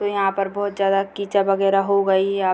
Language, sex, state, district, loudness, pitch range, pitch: Hindi, female, Bihar, Purnia, -20 LUFS, 195-200 Hz, 195 Hz